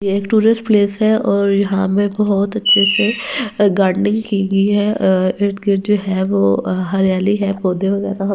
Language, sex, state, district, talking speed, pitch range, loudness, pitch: Hindi, female, Delhi, New Delhi, 165 wpm, 195-210 Hz, -15 LUFS, 200 Hz